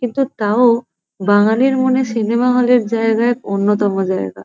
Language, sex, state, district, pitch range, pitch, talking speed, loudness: Bengali, female, West Bengal, North 24 Parganas, 205-250 Hz, 230 Hz, 150 wpm, -15 LUFS